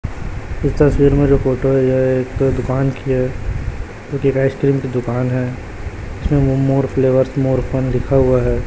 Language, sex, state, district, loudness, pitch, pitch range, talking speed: Hindi, male, Chhattisgarh, Raipur, -16 LUFS, 130 Hz, 120-135 Hz, 160 wpm